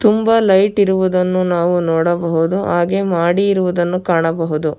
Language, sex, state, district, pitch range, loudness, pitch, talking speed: Kannada, female, Karnataka, Bangalore, 170-195 Hz, -15 LUFS, 180 Hz, 115 wpm